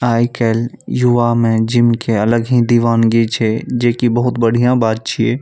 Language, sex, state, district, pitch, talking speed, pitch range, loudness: Maithili, male, Bihar, Saharsa, 115 Hz, 165 wpm, 115-120 Hz, -14 LUFS